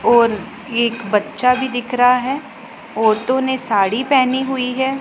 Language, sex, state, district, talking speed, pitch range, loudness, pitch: Hindi, female, Punjab, Pathankot, 170 wpm, 230-265 Hz, -17 LUFS, 250 Hz